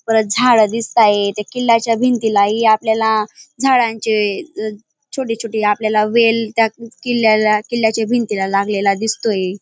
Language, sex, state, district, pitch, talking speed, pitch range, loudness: Marathi, female, Maharashtra, Dhule, 220 Hz, 120 wpm, 210-230 Hz, -15 LUFS